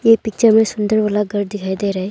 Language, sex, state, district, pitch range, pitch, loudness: Hindi, female, Arunachal Pradesh, Longding, 200-220 Hz, 210 Hz, -16 LUFS